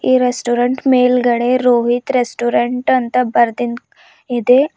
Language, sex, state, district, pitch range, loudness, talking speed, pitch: Kannada, female, Karnataka, Bidar, 240-250 Hz, -15 LUFS, 100 wpm, 245 Hz